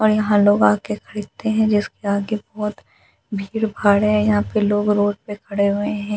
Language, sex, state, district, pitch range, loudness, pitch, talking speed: Hindi, female, Delhi, New Delhi, 200-215 Hz, -19 LUFS, 205 Hz, 205 wpm